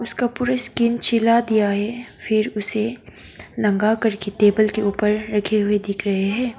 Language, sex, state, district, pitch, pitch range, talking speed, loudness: Hindi, female, Arunachal Pradesh, Papum Pare, 215 Hz, 205-235 Hz, 165 wpm, -20 LUFS